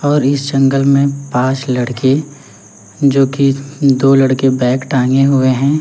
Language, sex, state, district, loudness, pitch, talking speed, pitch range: Hindi, male, Uttar Pradesh, Lalitpur, -13 LUFS, 135 Hz, 145 wpm, 130-140 Hz